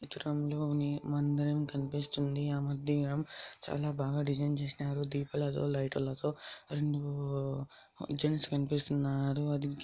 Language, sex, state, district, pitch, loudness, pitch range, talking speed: Telugu, male, Andhra Pradesh, Anantapur, 145 Hz, -35 LUFS, 140-145 Hz, 100 wpm